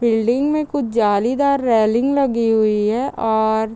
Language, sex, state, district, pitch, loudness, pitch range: Hindi, female, Bihar, Gopalganj, 230 Hz, -17 LUFS, 220-270 Hz